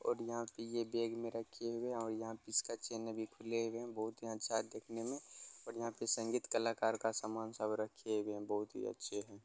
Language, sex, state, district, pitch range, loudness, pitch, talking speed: Maithili, male, Bihar, Darbhanga, 110-115 Hz, -41 LUFS, 115 Hz, 250 wpm